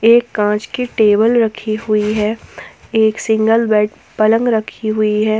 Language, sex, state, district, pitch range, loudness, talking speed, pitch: Hindi, female, Jharkhand, Ranchi, 215-225 Hz, -15 LUFS, 165 wpm, 220 Hz